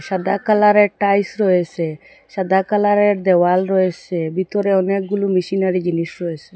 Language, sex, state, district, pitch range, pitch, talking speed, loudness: Bengali, female, Assam, Hailakandi, 180-200 Hz, 190 Hz, 135 wpm, -17 LUFS